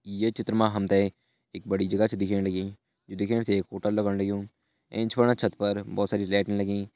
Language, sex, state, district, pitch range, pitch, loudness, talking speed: Hindi, male, Uttarakhand, Tehri Garhwal, 100-110 Hz, 100 Hz, -27 LUFS, 215 wpm